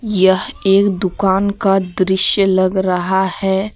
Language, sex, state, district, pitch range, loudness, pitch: Hindi, female, Jharkhand, Deoghar, 190-195 Hz, -15 LUFS, 190 Hz